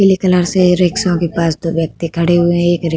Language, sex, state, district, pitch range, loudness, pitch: Hindi, female, Uttar Pradesh, Hamirpur, 165-180 Hz, -14 LUFS, 175 Hz